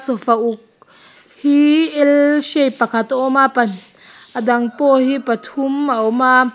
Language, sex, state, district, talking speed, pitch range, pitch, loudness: Mizo, female, Mizoram, Aizawl, 145 wpm, 235-280 Hz, 260 Hz, -15 LUFS